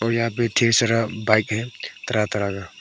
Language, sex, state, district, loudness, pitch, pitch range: Hindi, male, Arunachal Pradesh, Papum Pare, -21 LUFS, 115 Hz, 105-115 Hz